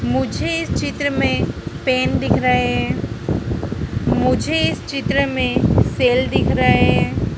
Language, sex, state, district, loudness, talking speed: Hindi, female, Madhya Pradesh, Dhar, -18 LUFS, 130 wpm